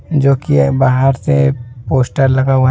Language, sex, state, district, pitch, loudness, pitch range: Hindi, male, Jharkhand, Deoghar, 130 Hz, -13 LUFS, 120-135 Hz